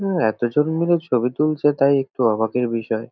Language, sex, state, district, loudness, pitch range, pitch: Bengali, male, West Bengal, North 24 Parganas, -20 LUFS, 120-155 Hz, 135 Hz